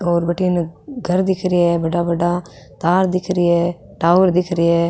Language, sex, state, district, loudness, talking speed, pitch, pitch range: Rajasthani, female, Rajasthan, Nagaur, -18 LUFS, 195 wpm, 175 Hz, 170-180 Hz